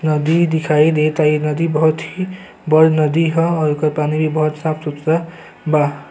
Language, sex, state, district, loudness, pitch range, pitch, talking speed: Bhojpuri, male, Uttar Pradesh, Gorakhpur, -16 LUFS, 150-160 Hz, 155 Hz, 165 wpm